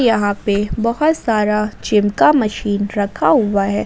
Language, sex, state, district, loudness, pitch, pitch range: Hindi, female, Jharkhand, Ranchi, -16 LUFS, 210 Hz, 205-230 Hz